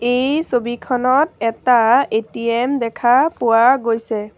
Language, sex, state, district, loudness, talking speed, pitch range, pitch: Assamese, female, Assam, Sonitpur, -16 LUFS, 95 wpm, 230-255 Hz, 240 Hz